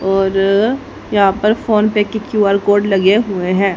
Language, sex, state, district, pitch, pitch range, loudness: Hindi, female, Haryana, Jhajjar, 205 Hz, 195-215 Hz, -14 LUFS